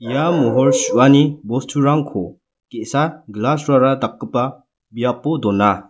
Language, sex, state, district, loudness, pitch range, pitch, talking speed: Garo, male, Meghalaya, West Garo Hills, -17 LUFS, 115-145 Hz, 130 Hz, 90 wpm